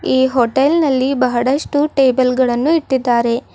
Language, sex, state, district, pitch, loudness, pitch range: Kannada, female, Karnataka, Bidar, 260 Hz, -15 LUFS, 250-280 Hz